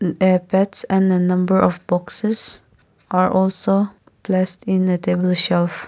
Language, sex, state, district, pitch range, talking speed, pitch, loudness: English, female, Nagaland, Kohima, 180-190 Hz, 135 wpm, 185 Hz, -19 LUFS